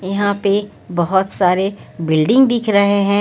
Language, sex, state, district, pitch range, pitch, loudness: Hindi, female, Haryana, Rohtak, 185-205 Hz, 200 Hz, -16 LUFS